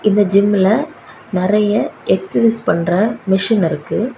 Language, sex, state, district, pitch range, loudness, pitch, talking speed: Tamil, female, Tamil Nadu, Kanyakumari, 190-225 Hz, -15 LUFS, 205 Hz, 100 wpm